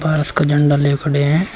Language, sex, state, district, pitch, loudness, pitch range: Hindi, male, Uttar Pradesh, Shamli, 145 Hz, -15 LUFS, 145-155 Hz